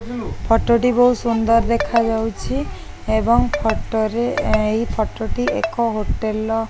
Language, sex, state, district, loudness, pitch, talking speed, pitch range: Odia, female, Odisha, Khordha, -19 LUFS, 230 Hz, 125 wpm, 220-235 Hz